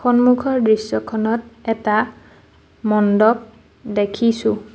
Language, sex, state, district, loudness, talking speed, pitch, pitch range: Assamese, female, Assam, Sonitpur, -18 LUFS, 65 wpm, 220 Hz, 215-235 Hz